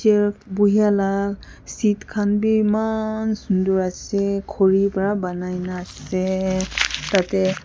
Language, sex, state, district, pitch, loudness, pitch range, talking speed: Nagamese, female, Nagaland, Kohima, 200 Hz, -21 LUFS, 190-210 Hz, 120 wpm